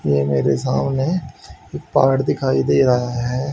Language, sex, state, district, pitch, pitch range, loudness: Hindi, male, Haryana, Charkhi Dadri, 130 Hz, 110-135 Hz, -18 LUFS